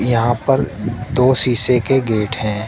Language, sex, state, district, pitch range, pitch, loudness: Hindi, male, Uttar Pradesh, Shamli, 110-130 Hz, 120 Hz, -16 LUFS